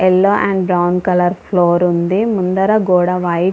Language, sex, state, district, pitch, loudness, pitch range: Telugu, female, Andhra Pradesh, Visakhapatnam, 180 Hz, -14 LUFS, 175-195 Hz